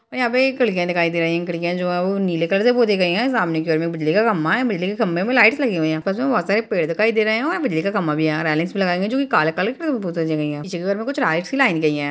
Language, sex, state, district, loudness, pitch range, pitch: Hindi, female, Uttarakhand, Tehri Garhwal, -19 LUFS, 165-240 Hz, 185 Hz